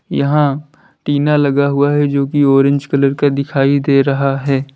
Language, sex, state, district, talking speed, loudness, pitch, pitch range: Hindi, male, Uttar Pradesh, Lalitpur, 175 wpm, -14 LUFS, 140 Hz, 140-145 Hz